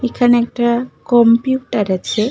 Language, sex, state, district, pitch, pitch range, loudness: Bengali, female, West Bengal, Malda, 240 Hz, 230-245 Hz, -15 LUFS